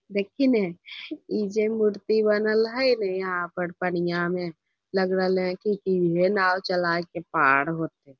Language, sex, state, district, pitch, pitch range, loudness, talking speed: Magahi, female, Bihar, Lakhisarai, 185 Hz, 175-210 Hz, -24 LUFS, 160 wpm